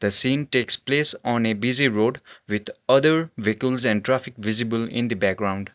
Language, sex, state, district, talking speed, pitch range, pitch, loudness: English, male, Sikkim, Gangtok, 175 wpm, 110-130 Hz, 120 Hz, -20 LUFS